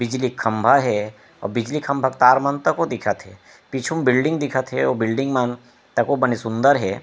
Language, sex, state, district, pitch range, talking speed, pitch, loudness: Chhattisgarhi, male, Chhattisgarh, Rajnandgaon, 115-140 Hz, 205 wpm, 125 Hz, -20 LUFS